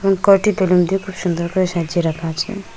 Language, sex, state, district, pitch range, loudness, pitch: Bengali, female, Assam, Hailakandi, 170-195 Hz, -17 LUFS, 185 Hz